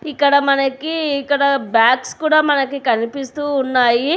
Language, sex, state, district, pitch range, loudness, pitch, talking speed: Telugu, female, Telangana, Hyderabad, 260-290 Hz, -16 LUFS, 280 Hz, 115 wpm